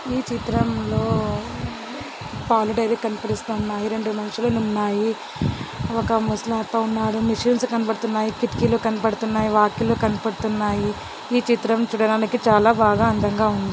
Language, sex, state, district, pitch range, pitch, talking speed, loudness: Telugu, male, Andhra Pradesh, Anantapur, 215-230 Hz, 220 Hz, 100 wpm, -22 LUFS